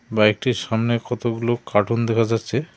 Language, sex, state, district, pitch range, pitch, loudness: Bengali, male, West Bengal, Cooch Behar, 110-120 Hz, 115 Hz, -21 LUFS